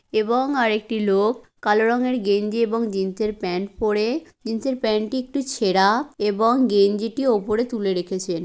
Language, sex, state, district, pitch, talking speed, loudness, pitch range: Bengali, female, West Bengal, Kolkata, 220 Hz, 150 wpm, -21 LUFS, 205-240 Hz